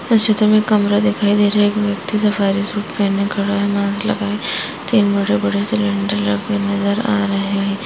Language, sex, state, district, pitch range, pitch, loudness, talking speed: Hindi, female, Chhattisgarh, Sarguja, 200-210 Hz, 200 Hz, -17 LUFS, 200 wpm